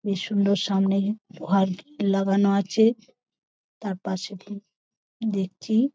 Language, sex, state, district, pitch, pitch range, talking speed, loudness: Bengali, female, West Bengal, Purulia, 200 Hz, 195-215 Hz, 90 wpm, -24 LUFS